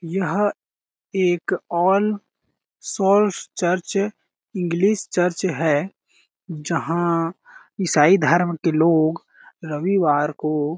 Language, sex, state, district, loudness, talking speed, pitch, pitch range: Hindi, male, Chhattisgarh, Balrampur, -20 LUFS, 90 wpm, 175 Hz, 165-190 Hz